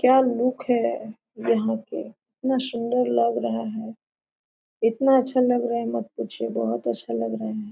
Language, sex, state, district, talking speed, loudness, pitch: Hindi, female, Jharkhand, Sahebganj, 170 wpm, -24 LUFS, 220 Hz